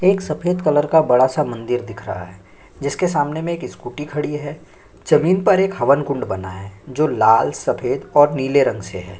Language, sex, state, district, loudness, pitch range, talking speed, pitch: Hindi, male, Chhattisgarh, Sukma, -18 LUFS, 115-155 Hz, 210 wpm, 145 Hz